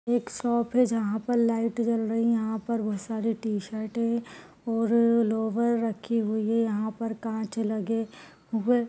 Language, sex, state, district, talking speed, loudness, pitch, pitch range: Hindi, female, Chhattisgarh, Bilaspur, 160 wpm, -27 LUFS, 225 Hz, 220-235 Hz